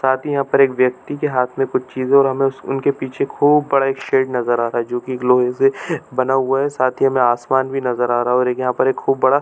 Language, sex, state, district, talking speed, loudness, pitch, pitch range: Hindi, male, Chhattisgarh, Bilaspur, 300 wpm, -17 LUFS, 130 Hz, 125-135 Hz